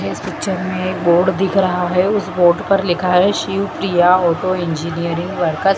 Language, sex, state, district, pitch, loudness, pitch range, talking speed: Hindi, female, Madhya Pradesh, Dhar, 180 Hz, -16 LUFS, 175-190 Hz, 195 wpm